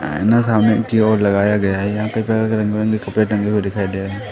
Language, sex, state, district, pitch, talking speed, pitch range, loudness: Hindi, male, Madhya Pradesh, Katni, 105 Hz, 235 wpm, 100-110 Hz, -17 LUFS